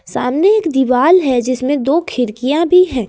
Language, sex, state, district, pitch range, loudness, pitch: Hindi, female, Jharkhand, Ranchi, 250-345 Hz, -13 LUFS, 275 Hz